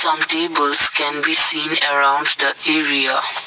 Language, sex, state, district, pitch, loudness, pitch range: English, male, Assam, Kamrup Metropolitan, 145 Hz, -14 LUFS, 140-155 Hz